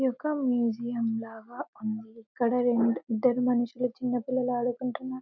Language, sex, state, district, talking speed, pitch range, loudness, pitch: Telugu, female, Telangana, Karimnagar, 105 wpm, 230-250 Hz, -29 LUFS, 245 Hz